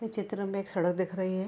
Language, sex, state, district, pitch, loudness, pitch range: Hindi, female, Bihar, Darbhanga, 190 Hz, -32 LUFS, 185-205 Hz